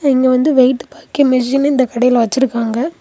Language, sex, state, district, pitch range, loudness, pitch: Tamil, female, Tamil Nadu, Kanyakumari, 245-275 Hz, -13 LUFS, 260 Hz